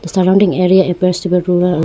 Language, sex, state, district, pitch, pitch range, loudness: English, female, Arunachal Pradesh, Lower Dibang Valley, 180 Hz, 180-185 Hz, -13 LUFS